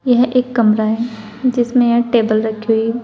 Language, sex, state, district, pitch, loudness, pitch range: Hindi, female, Uttar Pradesh, Saharanpur, 235 Hz, -15 LUFS, 220-245 Hz